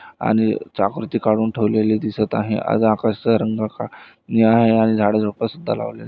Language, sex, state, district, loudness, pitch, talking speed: Marathi, male, Maharashtra, Nagpur, -19 LUFS, 110 Hz, 100 wpm